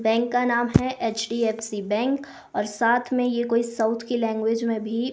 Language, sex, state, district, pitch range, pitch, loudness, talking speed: Hindi, female, Himachal Pradesh, Shimla, 225-240 Hz, 235 Hz, -24 LUFS, 185 wpm